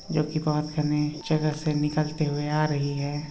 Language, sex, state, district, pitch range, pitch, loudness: Hindi, male, Uttar Pradesh, Hamirpur, 150-155 Hz, 150 Hz, -27 LUFS